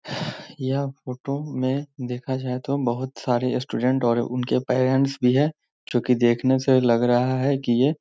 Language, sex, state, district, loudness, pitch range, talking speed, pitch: Hindi, male, Bihar, Muzaffarpur, -23 LUFS, 125-135 Hz, 180 wpm, 130 Hz